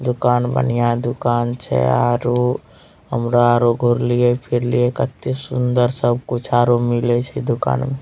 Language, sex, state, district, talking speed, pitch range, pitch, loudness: Maithili, male, Bihar, Madhepura, 140 wpm, 120-125 Hz, 120 Hz, -18 LUFS